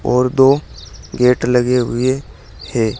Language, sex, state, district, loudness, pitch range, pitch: Hindi, male, Uttar Pradesh, Saharanpur, -15 LUFS, 115-125 Hz, 125 Hz